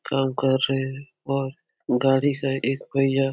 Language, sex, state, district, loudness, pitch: Hindi, male, Uttar Pradesh, Etah, -24 LUFS, 135 Hz